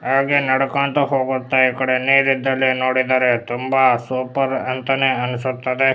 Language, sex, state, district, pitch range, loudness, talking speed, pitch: Kannada, male, Karnataka, Bellary, 130-135 Hz, -18 LUFS, 120 wpm, 130 Hz